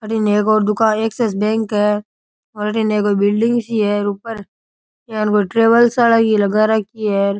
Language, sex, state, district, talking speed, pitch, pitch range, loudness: Rajasthani, male, Rajasthan, Churu, 185 wpm, 215 Hz, 210-225 Hz, -16 LUFS